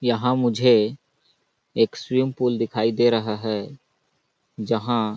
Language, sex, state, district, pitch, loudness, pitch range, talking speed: Hindi, male, Chhattisgarh, Balrampur, 120 Hz, -22 LUFS, 110-125 Hz, 140 wpm